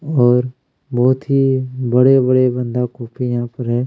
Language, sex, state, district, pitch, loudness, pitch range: Hindi, male, Chhattisgarh, Kabirdham, 125 Hz, -16 LUFS, 125-130 Hz